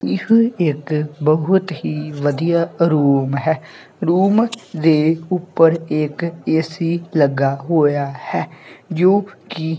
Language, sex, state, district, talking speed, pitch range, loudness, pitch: Punjabi, male, Punjab, Kapurthala, 105 wpm, 150-170 Hz, -18 LUFS, 160 Hz